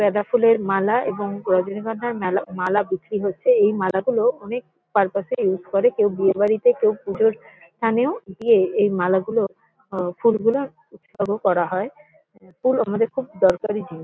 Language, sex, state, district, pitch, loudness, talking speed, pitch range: Bengali, female, West Bengal, Kolkata, 205 Hz, -21 LUFS, 155 wpm, 190-230 Hz